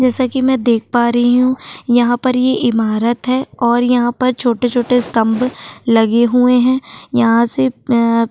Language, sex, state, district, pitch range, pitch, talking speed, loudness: Hindi, female, Maharashtra, Chandrapur, 235-255 Hz, 245 Hz, 175 wpm, -14 LUFS